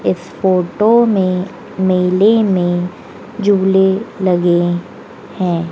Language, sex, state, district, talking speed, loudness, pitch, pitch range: Hindi, female, Madhya Pradesh, Dhar, 85 wpm, -14 LUFS, 185 Hz, 180-200 Hz